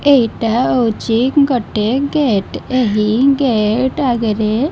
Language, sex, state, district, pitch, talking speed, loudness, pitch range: Odia, female, Odisha, Malkangiri, 245 Hz, 100 wpm, -15 LUFS, 220-275 Hz